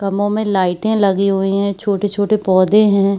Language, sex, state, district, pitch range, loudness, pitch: Hindi, female, Chhattisgarh, Bilaspur, 195-205 Hz, -15 LUFS, 200 Hz